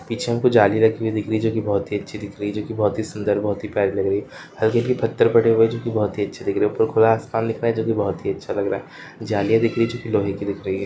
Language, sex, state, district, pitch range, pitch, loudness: Hindi, male, Rajasthan, Churu, 105-115 Hz, 110 Hz, -21 LUFS